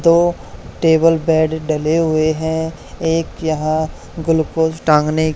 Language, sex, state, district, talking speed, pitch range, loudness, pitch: Hindi, male, Haryana, Charkhi Dadri, 110 wpm, 155-165 Hz, -17 LUFS, 160 Hz